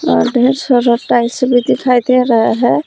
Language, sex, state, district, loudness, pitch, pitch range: Hindi, female, Jharkhand, Palamu, -12 LUFS, 245 Hz, 240-255 Hz